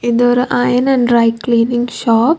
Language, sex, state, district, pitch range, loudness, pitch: Tamil, female, Tamil Nadu, Nilgiris, 235-245 Hz, -13 LUFS, 240 Hz